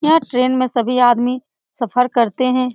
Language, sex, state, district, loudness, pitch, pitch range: Hindi, female, Bihar, Supaul, -16 LUFS, 250 Hz, 240-255 Hz